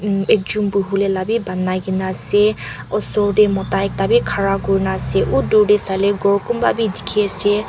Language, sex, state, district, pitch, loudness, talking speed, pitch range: Nagamese, female, Nagaland, Kohima, 200 Hz, -17 LUFS, 185 wpm, 190-210 Hz